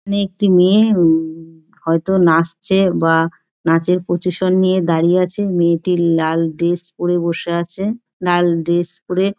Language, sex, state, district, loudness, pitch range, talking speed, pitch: Bengali, male, West Bengal, Dakshin Dinajpur, -16 LUFS, 165-185 Hz, 135 wpm, 175 Hz